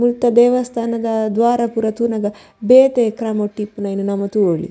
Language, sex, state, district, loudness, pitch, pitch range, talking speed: Tulu, female, Karnataka, Dakshina Kannada, -16 LUFS, 225 Hz, 210-240 Hz, 115 wpm